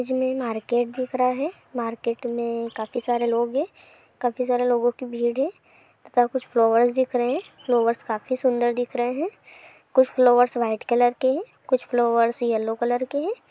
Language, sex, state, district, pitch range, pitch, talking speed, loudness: Hindi, female, Jharkhand, Sahebganj, 235-255 Hz, 245 Hz, 180 wpm, -23 LUFS